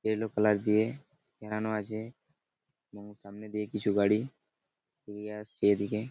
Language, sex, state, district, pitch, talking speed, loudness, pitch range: Bengali, male, West Bengal, Purulia, 105 Hz, 130 wpm, -31 LUFS, 105-110 Hz